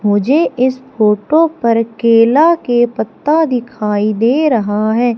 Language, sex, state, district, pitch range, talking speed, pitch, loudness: Hindi, female, Madhya Pradesh, Umaria, 220-290 Hz, 125 wpm, 240 Hz, -13 LUFS